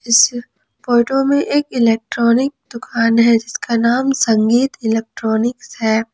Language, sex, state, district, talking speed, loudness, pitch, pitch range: Hindi, female, Jharkhand, Ranchi, 115 wpm, -16 LUFS, 235 Hz, 225-255 Hz